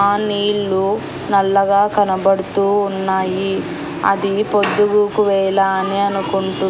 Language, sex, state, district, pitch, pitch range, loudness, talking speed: Telugu, female, Andhra Pradesh, Annamaya, 200 Hz, 195-205 Hz, -16 LUFS, 90 wpm